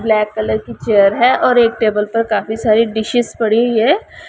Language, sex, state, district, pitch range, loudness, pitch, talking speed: Hindi, female, Punjab, Pathankot, 215-230 Hz, -14 LUFS, 220 Hz, 210 wpm